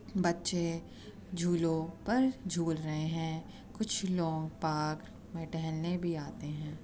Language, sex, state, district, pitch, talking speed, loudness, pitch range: Hindi, female, Uttar Pradesh, Muzaffarnagar, 165 Hz, 125 wpm, -35 LUFS, 160-175 Hz